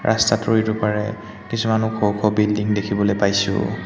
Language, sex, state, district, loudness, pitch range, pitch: Assamese, male, Assam, Hailakandi, -20 LUFS, 100-110 Hz, 105 Hz